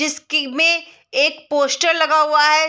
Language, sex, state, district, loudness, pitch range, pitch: Hindi, female, Bihar, Sitamarhi, -16 LUFS, 295-315 Hz, 305 Hz